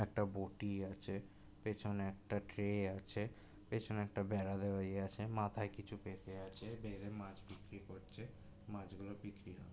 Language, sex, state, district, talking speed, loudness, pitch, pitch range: Bengali, male, West Bengal, Jalpaiguri, 160 wpm, -45 LUFS, 100 Hz, 95-105 Hz